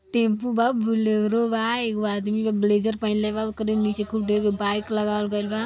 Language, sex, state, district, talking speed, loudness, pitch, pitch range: Bhojpuri, female, Uttar Pradesh, Deoria, 190 wpm, -23 LUFS, 215 Hz, 210-225 Hz